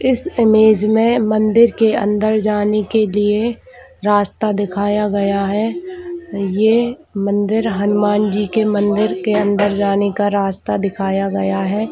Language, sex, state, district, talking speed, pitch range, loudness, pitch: Hindi, female, Chhattisgarh, Raigarh, 135 wpm, 205-220 Hz, -16 LUFS, 210 Hz